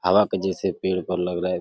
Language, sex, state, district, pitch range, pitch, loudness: Hindi, male, Uttar Pradesh, Deoria, 90-95 Hz, 90 Hz, -24 LUFS